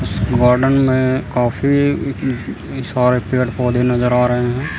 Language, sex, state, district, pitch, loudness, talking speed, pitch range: Hindi, male, Chandigarh, Chandigarh, 125 Hz, -16 LUFS, 125 wpm, 125-130 Hz